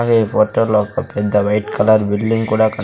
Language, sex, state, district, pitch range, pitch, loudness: Telugu, male, Andhra Pradesh, Sri Satya Sai, 105-110 Hz, 110 Hz, -16 LUFS